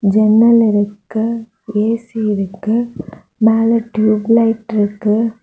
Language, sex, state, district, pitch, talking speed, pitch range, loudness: Tamil, female, Tamil Nadu, Kanyakumari, 220 Hz, 90 wpm, 210-230 Hz, -15 LUFS